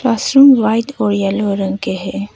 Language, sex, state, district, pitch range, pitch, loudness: Hindi, female, Arunachal Pradesh, Papum Pare, 200-245 Hz, 215 Hz, -14 LUFS